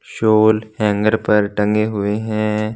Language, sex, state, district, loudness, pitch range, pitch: Hindi, male, Punjab, Fazilka, -17 LUFS, 105-110 Hz, 110 Hz